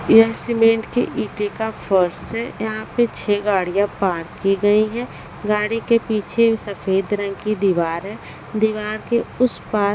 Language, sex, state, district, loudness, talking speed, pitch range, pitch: Hindi, female, Haryana, Rohtak, -20 LUFS, 165 wpm, 195-225 Hz, 210 Hz